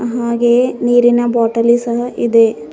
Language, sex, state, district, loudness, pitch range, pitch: Kannada, female, Karnataka, Bidar, -13 LUFS, 230-240 Hz, 235 Hz